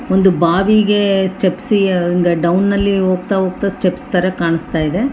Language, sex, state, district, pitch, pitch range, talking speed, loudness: Kannada, female, Karnataka, Bellary, 190 Hz, 175-200 Hz, 140 wpm, -15 LUFS